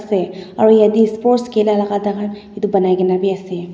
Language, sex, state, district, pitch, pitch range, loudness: Nagamese, female, Nagaland, Dimapur, 205 Hz, 190-215 Hz, -16 LUFS